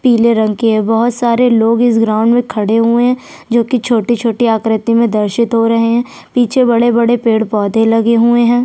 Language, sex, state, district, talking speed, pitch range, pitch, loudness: Hindi, female, Chhattisgarh, Sukma, 195 wpm, 225-240 Hz, 230 Hz, -12 LUFS